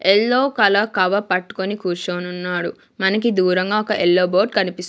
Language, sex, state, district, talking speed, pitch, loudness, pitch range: Telugu, female, Andhra Pradesh, Sri Satya Sai, 135 wpm, 190 Hz, -18 LUFS, 180-210 Hz